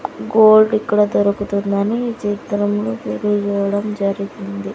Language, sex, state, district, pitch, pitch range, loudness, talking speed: Telugu, female, Andhra Pradesh, Sri Satya Sai, 205 Hz, 200-210 Hz, -17 LUFS, 75 wpm